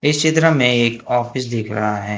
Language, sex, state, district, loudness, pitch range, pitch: Hindi, male, Maharashtra, Gondia, -17 LUFS, 110-145 Hz, 120 Hz